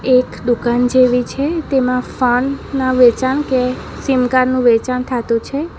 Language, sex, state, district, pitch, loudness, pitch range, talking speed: Gujarati, female, Gujarat, Valsad, 255 Hz, -15 LUFS, 245-260 Hz, 145 wpm